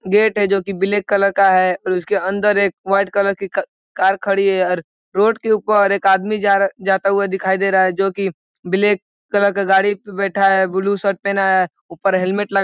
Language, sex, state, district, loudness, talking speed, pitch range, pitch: Hindi, male, Uttar Pradesh, Ghazipur, -17 LUFS, 230 wpm, 190-200 Hz, 195 Hz